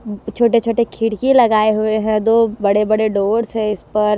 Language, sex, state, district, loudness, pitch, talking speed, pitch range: Hindi, female, Haryana, Rohtak, -16 LUFS, 215 Hz, 185 wpm, 210-230 Hz